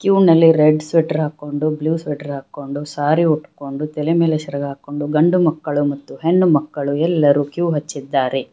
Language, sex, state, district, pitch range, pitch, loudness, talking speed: Kannada, female, Karnataka, Bangalore, 145-160 Hz, 150 Hz, -17 LUFS, 155 wpm